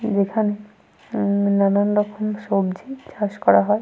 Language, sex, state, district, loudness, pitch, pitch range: Bengali, female, Jharkhand, Sahebganj, -20 LUFS, 205 Hz, 200-210 Hz